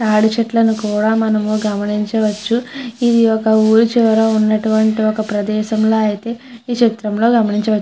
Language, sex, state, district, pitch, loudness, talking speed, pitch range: Telugu, female, Andhra Pradesh, Chittoor, 220 Hz, -15 LUFS, 125 wpm, 215-230 Hz